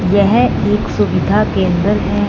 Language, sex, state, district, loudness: Hindi, female, Punjab, Fazilka, -14 LUFS